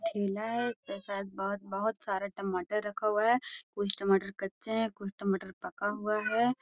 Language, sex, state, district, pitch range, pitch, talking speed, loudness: Magahi, female, Bihar, Gaya, 195-220 Hz, 205 Hz, 190 wpm, -33 LUFS